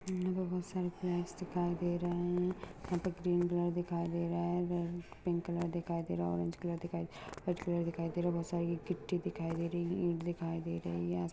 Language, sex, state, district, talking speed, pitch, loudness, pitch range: Hindi, female, Jharkhand, Jamtara, 245 wpm, 175 Hz, -37 LUFS, 170-175 Hz